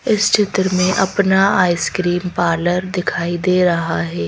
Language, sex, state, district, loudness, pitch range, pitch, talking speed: Hindi, female, Madhya Pradesh, Bhopal, -16 LUFS, 175-190 Hz, 180 Hz, 140 wpm